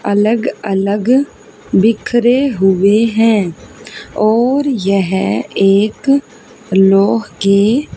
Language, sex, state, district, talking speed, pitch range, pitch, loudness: Hindi, female, Haryana, Jhajjar, 75 wpm, 195-240 Hz, 215 Hz, -13 LUFS